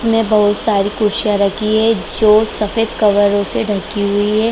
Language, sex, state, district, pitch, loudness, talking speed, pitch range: Hindi, female, Bihar, Madhepura, 210 Hz, -15 LUFS, 170 wpm, 205-220 Hz